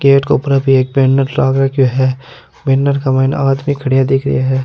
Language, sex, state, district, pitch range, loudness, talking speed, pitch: Rajasthani, male, Rajasthan, Nagaur, 130-140 Hz, -13 LUFS, 230 wpm, 135 Hz